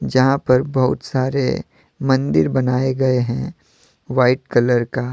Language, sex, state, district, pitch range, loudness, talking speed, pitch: Hindi, male, Jharkhand, Deoghar, 125-130 Hz, -18 LUFS, 130 wpm, 130 Hz